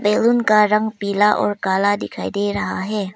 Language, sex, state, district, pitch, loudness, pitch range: Hindi, female, Arunachal Pradesh, Papum Pare, 205 Hz, -18 LUFS, 200-210 Hz